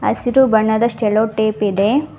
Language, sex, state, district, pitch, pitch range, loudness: Kannada, female, Karnataka, Bangalore, 220 Hz, 215-245 Hz, -16 LUFS